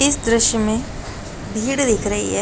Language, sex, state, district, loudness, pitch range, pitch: Hindi, female, Uttar Pradesh, Jalaun, -18 LUFS, 210-245 Hz, 225 Hz